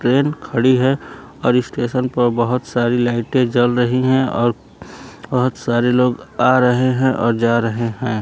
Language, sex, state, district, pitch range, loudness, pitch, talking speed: Hindi, male, Bihar, Kaimur, 120-130 Hz, -17 LUFS, 125 Hz, 170 wpm